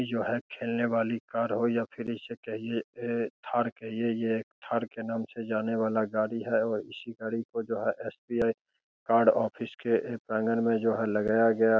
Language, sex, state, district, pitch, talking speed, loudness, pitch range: Hindi, male, Bihar, Begusarai, 115 Hz, 195 wpm, -30 LUFS, 110-115 Hz